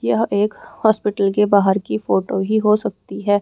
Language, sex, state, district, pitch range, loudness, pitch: Hindi, female, Haryana, Rohtak, 190-210 Hz, -18 LUFS, 205 Hz